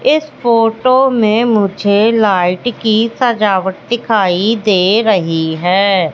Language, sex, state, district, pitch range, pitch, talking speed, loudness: Hindi, female, Madhya Pradesh, Katni, 190-235 Hz, 215 Hz, 110 wpm, -12 LUFS